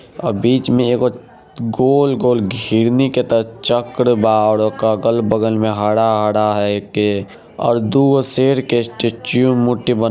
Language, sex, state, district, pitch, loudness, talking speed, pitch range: Hindi, male, Bihar, Araria, 115 Hz, -16 LUFS, 150 wpm, 110-125 Hz